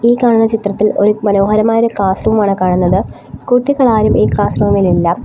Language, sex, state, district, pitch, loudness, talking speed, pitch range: Malayalam, female, Kerala, Kollam, 215 Hz, -12 LUFS, 180 wpm, 200-230 Hz